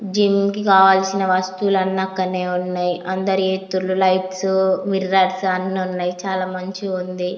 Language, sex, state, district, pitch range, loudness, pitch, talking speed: Telugu, female, Andhra Pradesh, Anantapur, 185-190 Hz, -19 LUFS, 190 Hz, 115 wpm